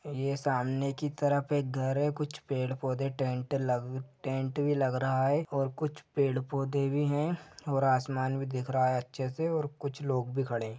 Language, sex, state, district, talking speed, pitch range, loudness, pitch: Hindi, male, Jharkhand, Sahebganj, 200 wpm, 130-145 Hz, -32 LUFS, 135 Hz